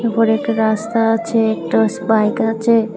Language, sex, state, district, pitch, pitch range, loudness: Bengali, female, Tripura, West Tripura, 225 Hz, 220-225 Hz, -16 LUFS